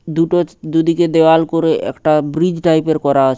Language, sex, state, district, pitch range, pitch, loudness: Bengali, male, West Bengal, Paschim Medinipur, 155-165 Hz, 160 Hz, -14 LUFS